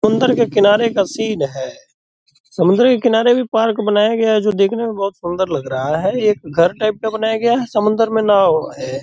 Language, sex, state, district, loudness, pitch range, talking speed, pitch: Hindi, male, Bihar, Purnia, -16 LUFS, 190-225 Hz, 230 wpm, 215 Hz